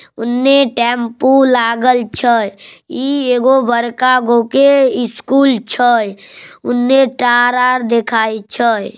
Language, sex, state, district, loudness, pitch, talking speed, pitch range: Magahi, male, Bihar, Samastipur, -12 LUFS, 245 Hz, 115 wpm, 235-260 Hz